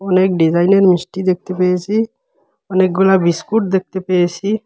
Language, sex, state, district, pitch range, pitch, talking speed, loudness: Bengali, male, Assam, Hailakandi, 180-195 Hz, 190 Hz, 130 wpm, -15 LUFS